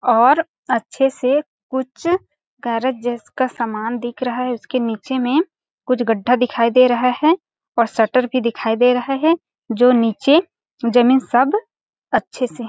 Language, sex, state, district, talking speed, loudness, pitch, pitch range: Hindi, female, Chhattisgarh, Balrampur, 155 wpm, -18 LUFS, 250 Hz, 235-270 Hz